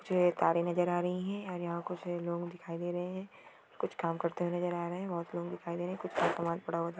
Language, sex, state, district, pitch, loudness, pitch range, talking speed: Hindi, female, Uttar Pradesh, Deoria, 175 Hz, -35 LUFS, 170-180 Hz, 265 wpm